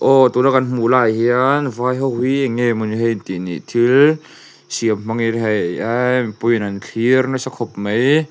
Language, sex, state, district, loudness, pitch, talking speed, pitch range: Mizo, male, Mizoram, Aizawl, -17 LUFS, 120 Hz, 195 wpm, 115-130 Hz